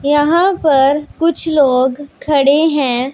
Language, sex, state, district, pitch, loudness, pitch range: Hindi, female, Punjab, Pathankot, 290 Hz, -13 LUFS, 275-315 Hz